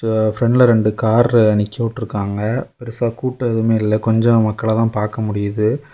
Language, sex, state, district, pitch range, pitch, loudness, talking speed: Tamil, male, Tamil Nadu, Kanyakumari, 110-120 Hz, 110 Hz, -17 LUFS, 160 wpm